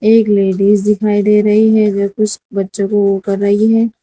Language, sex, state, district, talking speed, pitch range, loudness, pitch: Hindi, female, Gujarat, Valsad, 195 wpm, 200-215 Hz, -13 LUFS, 205 Hz